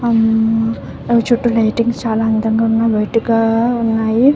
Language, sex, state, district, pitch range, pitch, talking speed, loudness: Telugu, female, Andhra Pradesh, Visakhapatnam, 225-235 Hz, 225 Hz, 125 wpm, -15 LUFS